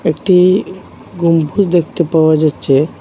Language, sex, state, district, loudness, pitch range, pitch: Bengali, male, Assam, Hailakandi, -13 LUFS, 155-180 Hz, 170 Hz